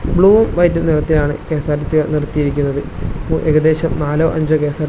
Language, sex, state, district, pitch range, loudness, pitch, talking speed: Malayalam, male, Kerala, Kasaragod, 150-160 Hz, -15 LUFS, 155 Hz, 120 wpm